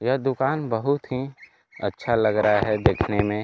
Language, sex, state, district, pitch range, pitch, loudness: Hindi, male, Bihar, Kaimur, 105-135 Hz, 120 Hz, -23 LUFS